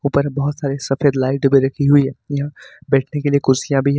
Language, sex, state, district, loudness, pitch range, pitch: Hindi, male, Jharkhand, Ranchi, -17 LUFS, 135-145 Hz, 140 Hz